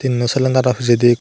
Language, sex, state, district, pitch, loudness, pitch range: Chakma, male, Tripura, Dhalai, 125 Hz, -15 LUFS, 120-130 Hz